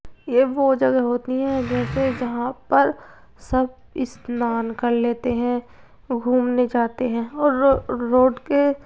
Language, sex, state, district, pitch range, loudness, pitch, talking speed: Hindi, male, Uttar Pradesh, Etah, 240-265 Hz, -21 LUFS, 250 Hz, 135 wpm